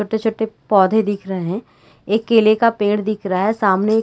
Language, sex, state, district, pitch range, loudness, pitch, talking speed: Hindi, female, Chhattisgarh, Bilaspur, 195-220 Hz, -17 LUFS, 215 Hz, 195 wpm